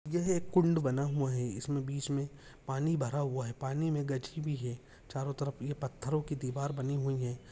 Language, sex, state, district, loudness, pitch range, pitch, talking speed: Hindi, male, Rajasthan, Nagaur, -34 LUFS, 130-145 Hz, 140 Hz, 190 wpm